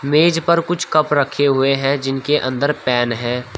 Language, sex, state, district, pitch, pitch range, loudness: Hindi, male, Uttar Pradesh, Shamli, 140 Hz, 130-150 Hz, -17 LUFS